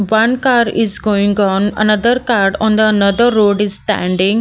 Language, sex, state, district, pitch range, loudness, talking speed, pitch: English, female, Maharashtra, Mumbai Suburban, 200-225 Hz, -13 LUFS, 175 wpm, 215 Hz